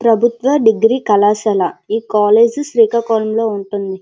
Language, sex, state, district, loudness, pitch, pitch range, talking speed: Telugu, female, Andhra Pradesh, Srikakulam, -14 LUFS, 225 Hz, 205-235 Hz, 105 wpm